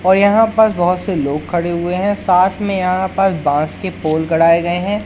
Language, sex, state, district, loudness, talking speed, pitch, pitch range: Hindi, male, Madhya Pradesh, Katni, -15 LUFS, 225 wpm, 180 Hz, 170-195 Hz